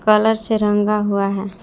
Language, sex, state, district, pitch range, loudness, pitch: Hindi, female, Jharkhand, Palamu, 200-215 Hz, -18 LUFS, 210 Hz